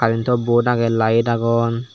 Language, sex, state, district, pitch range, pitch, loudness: Chakma, male, Tripura, Dhalai, 115-120 Hz, 115 Hz, -18 LUFS